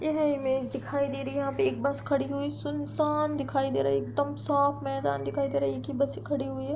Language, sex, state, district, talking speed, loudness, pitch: Hindi, female, Uttar Pradesh, Hamirpur, 250 wpm, -29 LUFS, 270 Hz